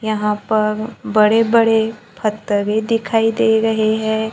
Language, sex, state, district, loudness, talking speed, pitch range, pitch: Hindi, male, Maharashtra, Gondia, -17 LUFS, 125 wpm, 215-225 Hz, 220 Hz